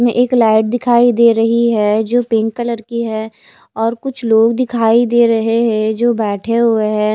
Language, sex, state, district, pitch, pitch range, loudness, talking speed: Hindi, female, Odisha, Khordha, 230 Hz, 220-240 Hz, -14 LUFS, 195 wpm